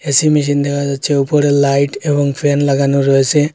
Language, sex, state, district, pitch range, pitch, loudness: Bengali, male, Assam, Hailakandi, 140-145 Hz, 140 Hz, -14 LUFS